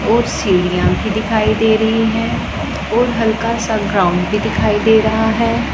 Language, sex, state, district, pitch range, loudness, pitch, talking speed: Hindi, female, Punjab, Pathankot, 210-225 Hz, -15 LUFS, 220 Hz, 165 wpm